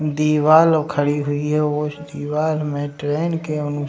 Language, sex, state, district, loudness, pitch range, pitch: Hindi, male, Bihar, Jahanabad, -19 LUFS, 145-150 Hz, 150 Hz